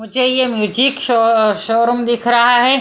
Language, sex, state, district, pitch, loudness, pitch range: Hindi, female, Punjab, Kapurthala, 240 Hz, -14 LUFS, 225-255 Hz